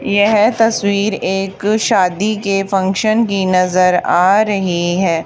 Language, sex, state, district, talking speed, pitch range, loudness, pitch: Hindi, female, Haryana, Charkhi Dadri, 125 wpm, 185-215 Hz, -14 LUFS, 200 Hz